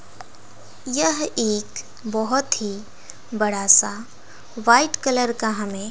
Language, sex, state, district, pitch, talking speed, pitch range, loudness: Hindi, female, Bihar, West Champaran, 225 Hz, 110 wpm, 210-255 Hz, -20 LUFS